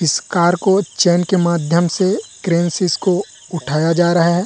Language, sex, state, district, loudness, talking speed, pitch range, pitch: Chhattisgarhi, male, Chhattisgarh, Rajnandgaon, -16 LUFS, 190 wpm, 170-185 Hz, 175 Hz